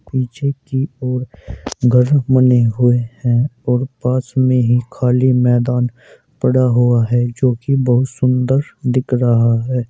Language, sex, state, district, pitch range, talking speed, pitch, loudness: Hindi, male, Uttar Pradesh, Saharanpur, 120-130 Hz, 140 wpm, 125 Hz, -15 LUFS